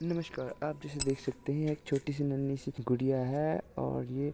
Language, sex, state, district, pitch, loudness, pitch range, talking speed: Hindi, male, Maharashtra, Solapur, 140 Hz, -34 LUFS, 130-150 Hz, 195 wpm